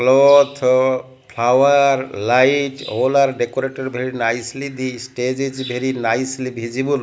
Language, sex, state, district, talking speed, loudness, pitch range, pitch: English, male, Odisha, Malkangiri, 120 wpm, -17 LUFS, 125-135 Hz, 130 Hz